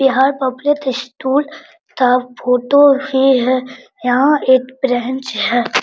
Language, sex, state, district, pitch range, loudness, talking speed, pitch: Hindi, female, Bihar, Araria, 250-280 Hz, -15 LUFS, 125 wpm, 260 Hz